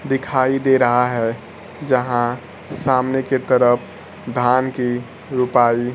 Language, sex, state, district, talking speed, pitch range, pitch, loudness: Hindi, male, Bihar, Kaimur, 110 wpm, 120-130 Hz, 125 Hz, -18 LUFS